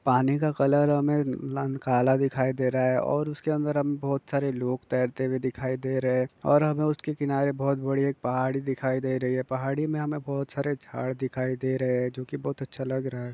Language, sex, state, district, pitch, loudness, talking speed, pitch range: Hindi, male, Bihar, Kishanganj, 135 Hz, -27 LUFS, 240 wpm, 130-145 Hz